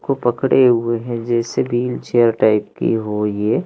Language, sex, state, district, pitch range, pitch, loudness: Hindi, male, Madhya Pradesh, Katni, 110-125 Hz, 120 Hz, -17 LUFS